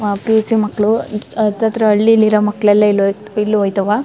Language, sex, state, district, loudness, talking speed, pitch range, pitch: Kannada, female, Karnataka, Chamarajanagar, -14 LUFS, 180 wpm, 210-220 Hz, 210 Hz